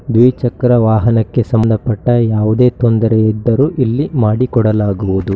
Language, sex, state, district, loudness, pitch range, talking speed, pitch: Kannada, male, Karnataka, Shimoga, -13 LUFS, 110-125 Hz, 90 wpm, 115 Hz